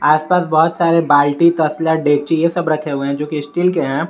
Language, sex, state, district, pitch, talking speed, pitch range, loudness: Hindi, male, Jharkhand, Garhwa, 160 Hz, 220 wpm, 150-170 Hz, -15 LUFS